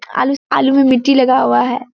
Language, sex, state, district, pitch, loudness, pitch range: Hindi, female, Bihar, Kishanganj, 260 Hz, -13 LUFS, 250-270 Hz